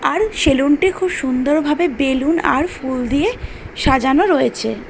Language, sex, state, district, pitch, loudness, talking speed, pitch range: Bengali, female, West Bengal, North 24 Parganas, 290 Hz, -16 LUFS, 145 wpm, 265-355 Hz